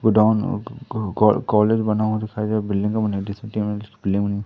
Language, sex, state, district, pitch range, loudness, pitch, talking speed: Hindi, male, Madhya Pradesh, Katni, 105-110 Hz, -21 LUFS, 110 Hz, 175 wpm